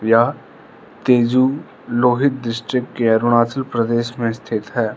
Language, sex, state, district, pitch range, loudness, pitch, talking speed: Hindi, male, Arunachal Pradesh, Lower Dibang Valley, 115-125 Hz, -18 LUFS, 120 Hz, 120 wpm